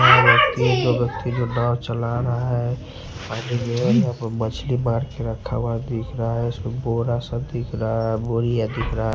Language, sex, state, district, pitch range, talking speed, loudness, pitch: Hindi, male, Bihar, West Champaran, 115-120 Hz, 190 wpm, -22 LUFS, 120 Hz